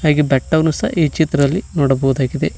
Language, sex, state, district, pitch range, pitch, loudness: Kannada, male, Karnataka, Koppal, 135-160 Hz, 150 Hz, -16 LUFS